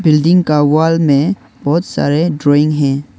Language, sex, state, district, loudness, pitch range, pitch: Hindi, male, Arunachal Pradesh, Longding, -13 LUFS, 145-165 Hz, 150 Hz